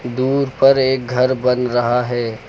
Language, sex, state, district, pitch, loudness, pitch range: Hindi, male, Uttar Pradesh, Lucknow, 125 Hz, -16 LUFS, 120-130 Hz